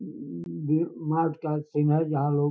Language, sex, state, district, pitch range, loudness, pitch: Hindi, male, Uttar Pradesh, Gorakhpur, 145-160 Hz, -27 LUFS, 150 Hz